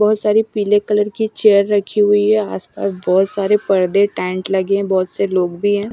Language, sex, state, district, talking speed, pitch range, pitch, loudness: Hindi, female, Punjab, Pathankot, 215 wpm, 190-210 Hz, 205 Hz, -16 LUFS